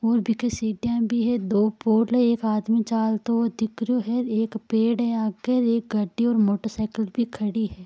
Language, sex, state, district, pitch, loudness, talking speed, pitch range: Marwari, female, Rajasthan, Nagaur, 225 Hz, -23 LUFS, 205 wpm, 220-235 Hz